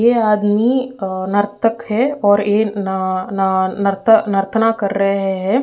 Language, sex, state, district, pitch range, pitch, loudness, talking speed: Hindi, female, Uttar Pradesh, Ghazipur, 195-225 Hz, 205 Hz, -16 LUFS, 140 wpm